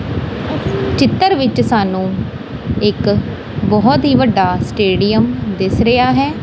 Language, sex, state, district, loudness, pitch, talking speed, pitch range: Punjabi, female, Punjab, Kapurthala, -14 LUFS, 225 Hz, 105 wpm, 195-260 Hz